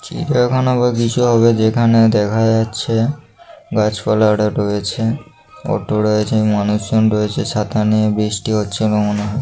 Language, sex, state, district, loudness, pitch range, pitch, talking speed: Bengali, male, West Bengal, North 24 Parganas, -16 LUFS, 105-115 Hz, 110 Hz, 125 wpm